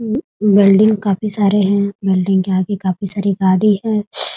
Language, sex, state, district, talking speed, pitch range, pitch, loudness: Hindi, female, Bihar, Muzaffarpur, 165 wpm, 195-210 Hz, 200 Hz, -14 LUFS